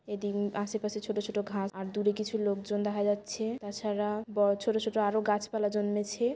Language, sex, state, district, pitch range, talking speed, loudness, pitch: Bengali, female, West Bengal, Jalpaiguri, 205-215 Hz, 180 wpm, -32 LUFS, 210 Hz